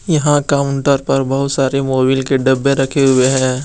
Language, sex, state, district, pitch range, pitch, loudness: Hindi, male, Jharkhand, Deoghar, 130-140 Hz, 135 Hz, -14 LUFS